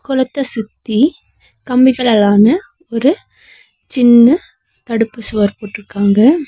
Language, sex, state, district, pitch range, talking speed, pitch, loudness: Tamil, female, Tamil Nadu, Nilgiris, 215-275 Hz, 85 wpm, 240 Hz, -13 LUFS